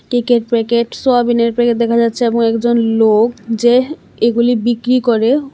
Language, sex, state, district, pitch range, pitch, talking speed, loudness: Bengali, female, Tripura, West Tripura, 230-240 Hz, 235 Hz, 140 wpm, -14 LUFS